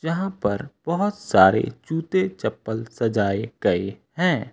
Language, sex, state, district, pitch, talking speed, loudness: Hindi, male, Uttar Pradesh, Lucknow, 125 Hz, 120 wpm, -23 LUFS